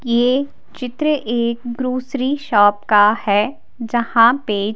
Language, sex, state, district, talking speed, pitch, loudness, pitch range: Hindi, female, Delhi, New Delhi, 115 wpm, 235 Hz, -17 LUFS, 215-255 Hz